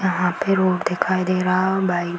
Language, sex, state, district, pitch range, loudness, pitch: Hindi, female, Bihar, Darbhanga, 180-190 Hz, -20 LUFS, 185 Hz